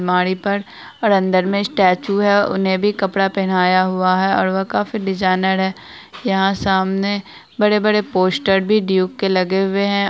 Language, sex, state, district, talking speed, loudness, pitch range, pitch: Hindi, female, Bihar, Araria, 165 wpm, -17 LUFS, 185-200 Hz, 195 Hz